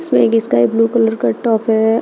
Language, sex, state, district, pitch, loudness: Hindi, female, Uttar Pradesh, Shamli, 225 Hz, -14 LUFS